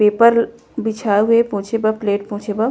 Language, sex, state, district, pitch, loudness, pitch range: Chhattisgarhi, female, Chhattisgarh, Korba, 215 Hz, -17 LUFS, 205-230 Hz